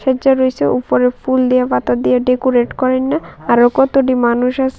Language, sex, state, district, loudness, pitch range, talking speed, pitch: Bengali, female, Tripura, West Tripura, -14 LUFS, 235-260 Hz, 165 wpm, 255 Hz